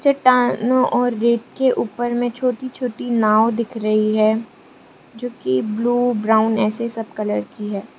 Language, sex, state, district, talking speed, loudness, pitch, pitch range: Hindi, female, Arunachal Pradesh, Lower Dibang Valley, 145 wpm, -19 LUFS, 235 Hz, 215-245 Hz